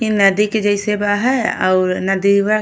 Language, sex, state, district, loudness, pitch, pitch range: Bhojpuri, female, Uttar Pradesh, Ghazipur, -16 LUFS, 205 Hz, 195-215 Hz